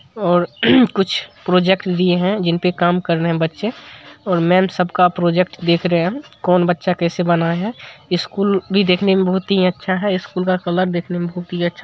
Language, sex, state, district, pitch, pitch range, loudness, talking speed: Hindi, male, Bihar, Supaul, 180 Hz, 175-190 Hz, -17 LUFS, 245 wpm